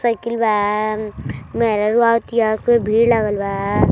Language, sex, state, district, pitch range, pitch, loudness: Hindi, female, Uttar Pradesh, Deoria, 210-235 Hz, 220 Hz, -18 LUFS